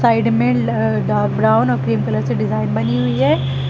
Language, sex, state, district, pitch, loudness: Hindi, female, Uttar Pradesh, Lucknow, 115 Hz, -17 LUFS